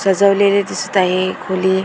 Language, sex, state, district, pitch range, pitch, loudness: Marathi, female, Maharashtra, Dhule, 185-200 Hz, 190 Hz, -15 LUFS